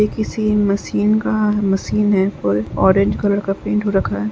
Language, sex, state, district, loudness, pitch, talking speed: Hindi, female, Uttar Pradesh, Jyotiba Phule Nagar, -17 LUFS, 200 Hz, 180 wpm